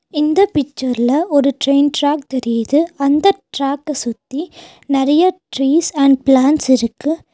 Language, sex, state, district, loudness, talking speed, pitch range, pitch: Tamil, female, Tamil Nadu, Nilgiris, -15 LUFS, 115 wpm, 270-310 Hz, 285 Hz